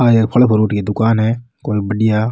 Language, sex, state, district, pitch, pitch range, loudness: Rajasthani, male, Rajasthan, Nagaur, 110 Hz, 105-120 Hz, -15 LUFS